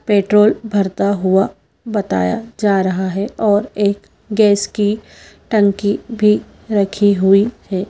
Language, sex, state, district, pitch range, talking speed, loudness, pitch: Hindi, female, Madhya Pradesh, Bhopal, 195-210 Hz, 120 wpm, -16 LUFS, 205 Hz